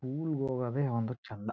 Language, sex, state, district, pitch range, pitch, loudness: Kannada, male, Karnataka, Chamarajanagar, 115-140 Hz, 130 Hz, -34 LUFS